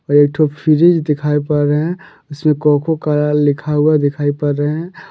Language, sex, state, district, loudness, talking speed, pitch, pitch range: Hindi, male, Jharkhand, Deoghar, -15 LUFS, 165 wpm, 150 Hz, 145-155 Hz